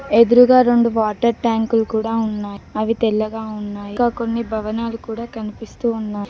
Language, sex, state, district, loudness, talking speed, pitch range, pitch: Telugu, female, Telangana, Mahabubabad, -18 LUFS, 145 wpm, 215-235 Hz, 225 Hz